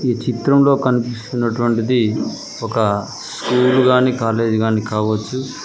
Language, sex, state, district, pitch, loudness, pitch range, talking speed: Telugu, male, Telangana, Mahabubabad, 120 Hz, -17 LUFS, 110-125 Hz, 95 wpm